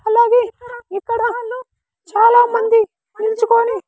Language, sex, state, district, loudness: Telugu, male, Andhra Pradesh, Sri Satya Sai, -15 LUFS